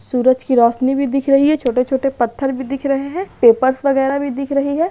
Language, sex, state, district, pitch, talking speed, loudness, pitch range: Hindi, female, Bihar, Darbhanga, 270 Hz, 230 wpm, -16 LUFS, 255-275 Hz